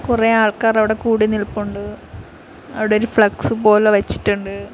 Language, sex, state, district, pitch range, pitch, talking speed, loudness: Malayalam, female, Kerala, Kollam, 205-225 Hz, 215 Hz, 125 wpm, -16 LUFS